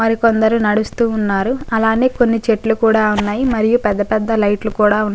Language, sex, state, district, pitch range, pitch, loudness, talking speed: Telugu, female, Andhra Pradesh, Guntur, 210-230 Hz, 220 Hz, -15 LUFS, 165 wpm